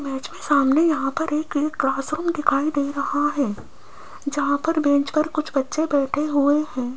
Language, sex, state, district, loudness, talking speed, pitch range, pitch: Hindi, female, Rajasthan, Jaipur, -22 LUFS, 170 wpm, 280-305 Hz, 290 Hz